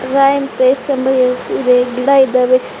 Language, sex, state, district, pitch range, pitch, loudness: Kannada, female, Karnataka, Bidar, 255-275 Hz, 255 Hz, -13 LUFS